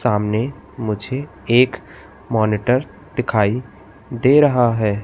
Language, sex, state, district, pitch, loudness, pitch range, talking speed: Hindi, male, Madhya Pradesh, Katni, 115 Hz, -18 LUFS, 105-125 Hz, 95 wpm